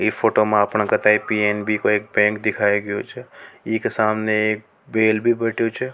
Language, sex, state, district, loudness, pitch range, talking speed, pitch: Rajasthani, male, Rajasthan, Nagaur, -19 LUFS, 105-110 Hz, 160 wpm, 105 Hz